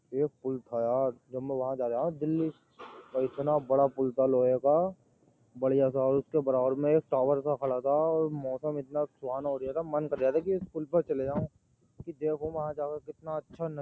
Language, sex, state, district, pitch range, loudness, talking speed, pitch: Hindi, male, Uttar Pradesh, Jyotiba Phule Nagar, 130-155 Hz, -30 LUFS, 200 wpm, 145 Hz